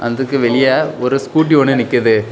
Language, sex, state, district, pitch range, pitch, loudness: Tamil, male, Tamil Nadu, Kanyakumari, 120-135 Hz, 130 Hz, -14 LUFS